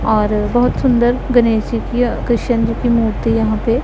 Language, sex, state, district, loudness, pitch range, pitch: Hindi, female, Punjab, Pathankot, -15 LUFS, 220-240 Hz, 235 Hz